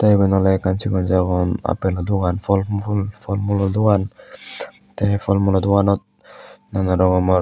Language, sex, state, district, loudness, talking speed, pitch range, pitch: Chakma, male, Tripura, West Tripura, -19 LUFS, 155 wpm, 95-100 Hz, 100 Hz